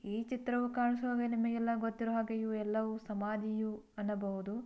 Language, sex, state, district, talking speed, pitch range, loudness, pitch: Kannada, female, Karnataka, Bijapur, 115 wpm, 215-235 Hz, -36 LUFS, 225 Hz